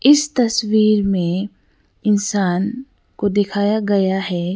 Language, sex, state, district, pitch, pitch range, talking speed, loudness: Hindi, female, Sikkim, Gangtok, 205 Hz, 190-215 Hz, 105 wpm, -18 LUFS